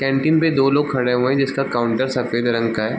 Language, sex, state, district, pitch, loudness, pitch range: Hindi, male, Bihar, Sitamarhi, 130 Hz, -18 LUFS, 120-135 Hz